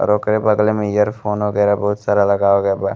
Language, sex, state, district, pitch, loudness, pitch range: Bhojpuri, male, Uttar Pradesh, Gorakhpur, 105 Hz, -16 LUFS, 100-105 Hz